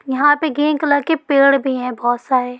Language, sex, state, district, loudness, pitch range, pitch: Hindi, female, Bihar, Gopalganj, -16 LUFS, 250-290 Hz, 275 Hz